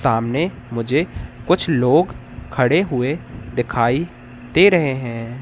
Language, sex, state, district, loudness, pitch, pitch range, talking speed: Hindi, male, Madhya Pradesh, Katni, -19 LUFS, 125 Hz, 120-155 Hz, 110 wpm